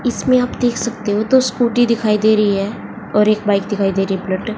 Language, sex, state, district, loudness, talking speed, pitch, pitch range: Hindi, female, Haryana, Jhajjar, -16 LUFS, 260 wpm, 215 Hz, 205-240 Hz